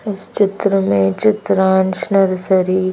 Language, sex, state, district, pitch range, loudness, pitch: Hindi, female, Madhya Pradesh, Bhopal, 185-195 Hz, -15 LUFS, 190 Hz